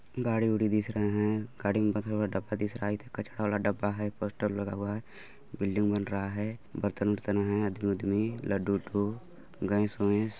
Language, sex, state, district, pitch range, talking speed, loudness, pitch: Hindi, male, Chhattisgarh, Balrampur, 100-105 Hz, 205 wpm, -31 LUFS, 105 Hz